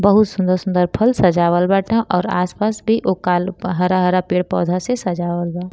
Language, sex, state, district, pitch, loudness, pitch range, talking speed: Bhojpuri, female, Uttar Pradesh, Gorakhpur, 185 Hz, -17 LUFS, 180-200 Hz, 200 wpm